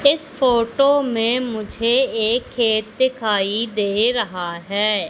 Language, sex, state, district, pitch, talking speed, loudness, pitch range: Hindi, female, Madhya Pradesh, Katni, 230 Hz, 120 wpm, -19 LUFS, 215-255 Hz